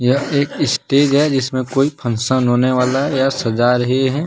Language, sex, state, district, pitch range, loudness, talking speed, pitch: Hindi, male, Jharkhand, Deoghar, 125-140 Hz, -16 LUFS, 195 wpm, 130 Hz